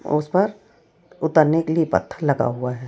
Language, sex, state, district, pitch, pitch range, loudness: Hindi, female, Chhattisgarh, Raipur, 160 Hz, 150-165 Hz, -20 LUFS